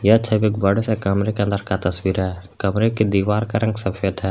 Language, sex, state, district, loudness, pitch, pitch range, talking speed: Hindi, male, Jharkhand, Palamu, -20 LUFS, 100 Hz, 95-110 Hz, 250 wpm